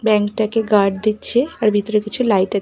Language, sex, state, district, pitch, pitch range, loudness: Bengali, female, West Bengal, Malda, 215 Hz, 205-225 Hz, -17 LUFS